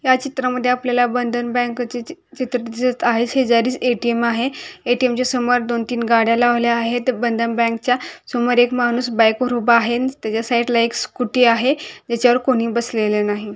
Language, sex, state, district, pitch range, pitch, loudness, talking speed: Marathi, female, Maharashtra, Solapur, 235-250 Hz, 245 Hz, -18 LUFS, 175 wpm